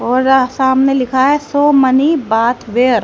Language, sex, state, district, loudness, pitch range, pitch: Hindi, female, Haryana, Jhajjar, -12 LUFS, 250-275 Hz, 260 Hz